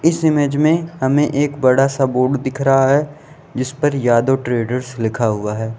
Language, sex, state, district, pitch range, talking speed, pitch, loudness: Hindi, male, Uttar Pradesh, Lalitpur, 125-145 Hz, 185 wpm, 135 Hz, -17 LUFS